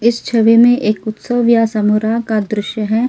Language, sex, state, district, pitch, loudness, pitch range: Hindi, female, Delhi, New Delhi, 225 Hz, -14 LUFS, 215-235 Hz